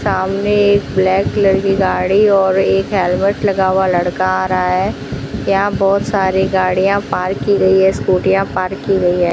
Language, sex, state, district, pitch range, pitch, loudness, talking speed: Hindi, female, Rajasthan, Bikaner, 185-195 Hz, 190 Hz, -14 LUFS, 180 wpm